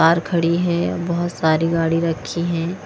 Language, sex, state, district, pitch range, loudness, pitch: Hindi, female, Punjab, Kapurthala, 165-170 Hz, -20 LUFS, 170 Hz